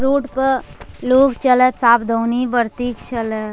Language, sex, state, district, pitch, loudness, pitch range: Angika, female, Bihar, Bhagalpur, 245 Hz, -17 LUFS, 235-260 Hz